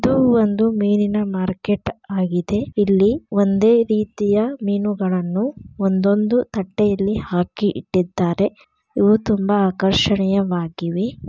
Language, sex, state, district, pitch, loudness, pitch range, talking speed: Kannada, female, Karnataka, Dharwad, 205 Hz, -19 LUFS, 190-215 Hz, 85 wpm